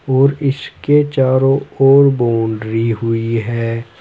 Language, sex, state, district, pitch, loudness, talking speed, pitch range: Hindi, male, Uttar Pradesh, Saharanpur, 130 Hz, -15 LUFS, 105 wpm, 115-135 Hz